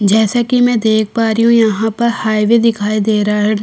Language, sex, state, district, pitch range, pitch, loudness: Hindi, female, Chhattisgarh, Kabirdham, 215-230 Hz, 220 Hz, -13 LUFS